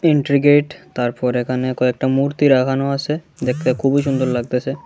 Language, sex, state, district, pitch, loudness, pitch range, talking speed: Bengali, male, Tripura, West Tripura, 135 Hz, -18 LUFS, 125-145 Hz, 150 wpm